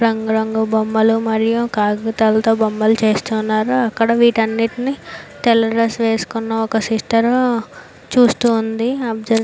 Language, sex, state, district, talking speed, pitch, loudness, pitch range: Telugu, female, Andhra Pradesh, Anantapur, 110 wpm, 225 Hz, -16 LUFS, 220-230 Hz